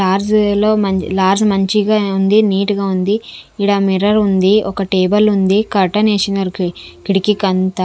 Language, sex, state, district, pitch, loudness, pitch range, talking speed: Telugu, female, Andhra Pradesh, Sri Satya Sai, 200 Hz, -14 LUFS, 190-210 Hz, 140 wpm